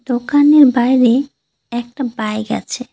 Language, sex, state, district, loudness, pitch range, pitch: Bengali, female, West Bengal, Cooch Behar, -14 LUFS, 240-270 Hz, 245 Hz